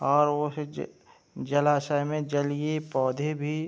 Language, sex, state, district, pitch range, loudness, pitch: Hindi, male, Bihar, Saharsa, 145-150 Hz, -27 LUFS, 145 Hz